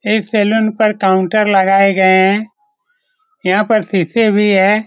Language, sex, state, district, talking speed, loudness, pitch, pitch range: Hindi, male, Bihar, Saran, 150 wpm, -13 LUFS, 210 Hz, 195-220 Hz